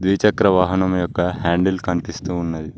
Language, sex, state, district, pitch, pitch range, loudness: Telugu, male, Telangana, Mahabubabad, 90 Hz, 85-95 Hz, -19 LUFS